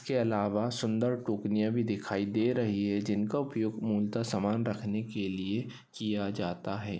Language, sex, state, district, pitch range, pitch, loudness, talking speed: Hindi, male, Maharashtra, Solapur, 105-115 Hz, 105 Hz, -32 LUFS, 165 wpm